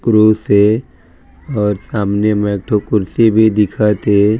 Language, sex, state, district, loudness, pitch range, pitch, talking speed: Chhattisgarhi, male, Chhattisgarh, Raigarh, -14 LUFS, 100-110 Hz, 105 Hz, 135 wpm